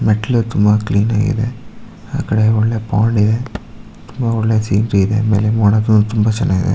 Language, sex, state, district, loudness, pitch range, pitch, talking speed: Kannada, male, Karnataka, Shimoga, -15 LUFS, 105-115 Hz, 110 Hz, 90 wpm